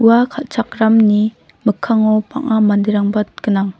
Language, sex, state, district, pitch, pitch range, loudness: Garo, female, Meghalaya, North Garo Hills, 215 Hz, 210-235 Hz, -15 LUFS